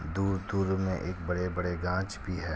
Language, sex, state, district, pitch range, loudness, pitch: Hindi, male, Jharkhand, Sahebganj, 90-95 Hz, -32 LUFS, 90 Hz